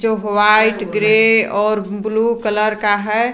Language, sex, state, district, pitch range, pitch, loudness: Hindi, female, Jharkhand, Garhwa, 210-220 Hz, 215 Hz, -15 LUFS